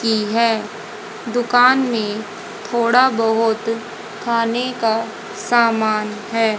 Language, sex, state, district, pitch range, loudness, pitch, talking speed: Hindi, female, Haryana, Charkhi Dadri, 220-235 Hz, -18 LUFS, 230 Hz, 90 wpm